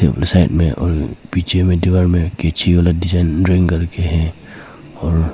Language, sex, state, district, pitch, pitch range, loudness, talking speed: Hindi, male, Arunachal Pradesh, Papum Pare, 85 Hz, 80-90 Hz, -16 LUFS, 170 wpm